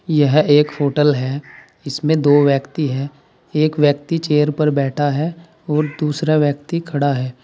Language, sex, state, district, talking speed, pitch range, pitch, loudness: Hindi, male, Uttar Pradesh, Saharanpur, 155 wpm, 145-155 Hz, 150 Hz, -17 LUFS